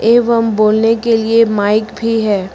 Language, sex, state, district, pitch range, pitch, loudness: Hindi, female, Uttar Pradesh, Lucknow, 215-230 Hz, 225 Hz, -13 LUFS